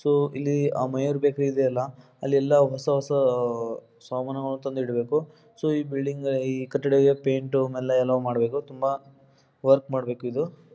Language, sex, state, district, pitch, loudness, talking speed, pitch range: Kannada, male, Karnataka, Dharwad, 135 Hz, -25 LUFS, 130 wpm, 130-140 Hz